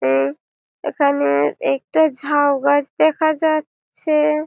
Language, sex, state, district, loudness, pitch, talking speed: Bengali, female, West Bengal, Malda, -18 LUFS, 290 Hz, 95 wpm